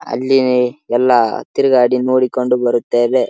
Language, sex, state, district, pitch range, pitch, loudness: Kannada, male, Karnataka, Bellary, 120-130 Hz, 125 Hz, -14 LUFS